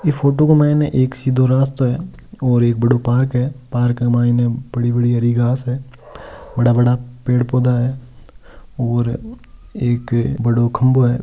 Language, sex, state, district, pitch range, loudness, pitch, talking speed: Marwari, male, Rajasthan, Nagaur, 120-130 Hz, -17 LUFS, 125 Hz, 155 wpm